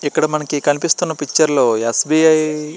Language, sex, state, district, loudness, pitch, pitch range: Telugu, male, Andhra Pradesh, Srikakulam, -15 LUFS, 155 Hz, 145-160 Hz